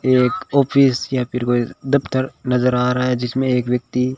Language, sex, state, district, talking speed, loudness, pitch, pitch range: Hindi, male, Rajasthan, Bikaner, 185 wpm, -18 LUFS, 125 Hz, 125-130 Hz